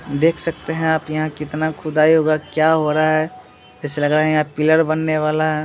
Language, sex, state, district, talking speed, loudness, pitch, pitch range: Hindi, male, Bihar, Muzaffarpur, 200 wpm, -18 LUFS, 155 Hz, 155-160 Hz